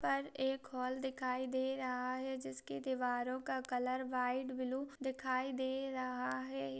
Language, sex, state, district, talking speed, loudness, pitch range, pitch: Hindi, female, Bihar, Kishanganj, 150 wpm, -40 LUFS, 250-265 Hz, 255 Hz